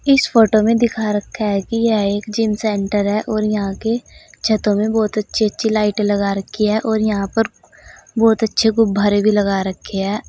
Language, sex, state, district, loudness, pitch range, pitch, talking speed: Hindi, female, Uttar Pradesh, Saharanpur, -17 LUFS, 205-220 Hz, 215 Hz, 200 wpm